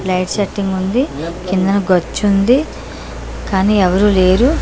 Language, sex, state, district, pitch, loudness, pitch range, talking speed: Telugu, female, Andhra Pradesh, Manyam, 190 Hz, -15 LUFS, 185-205 Hz, 105 wpm